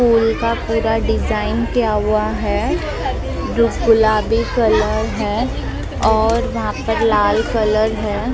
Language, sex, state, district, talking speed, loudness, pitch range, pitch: Hindi, female, Maharashtra, Mumbai Suburban, 130 wpm, -17 LUFS, 215-230 Hz, 225 Hz